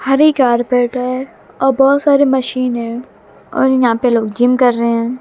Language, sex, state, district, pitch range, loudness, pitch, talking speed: Hindi, female, Haryana, Jhajjar, 235-265 Hz, -14 LUFS, 250 Hz, 185 wpm